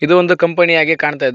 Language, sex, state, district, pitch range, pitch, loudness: Kannada, male, Karnataka, Koppal, 155-175 Hz, 165 Hz, -12 LUFS